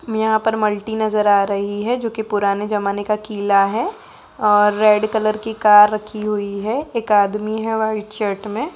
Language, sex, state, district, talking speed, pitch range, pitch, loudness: Hindi, female, Uttar Pradesh, Budaun, 190 wpm, 205-220 Hz, 215 Hz, -18 LUFS